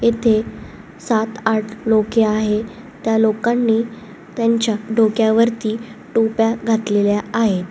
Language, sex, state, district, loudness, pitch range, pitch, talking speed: Marathi, female, Maharashtra, Solapur, -18 LUFS, 215-230 Hz, 225 Hz, 95 wpm